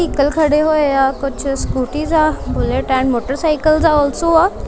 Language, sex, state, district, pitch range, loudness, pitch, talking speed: Punjabi, female, Punjab, Kapurthala, 275-315 Hz, -15 LUFS, 300 Hz, 165 wpm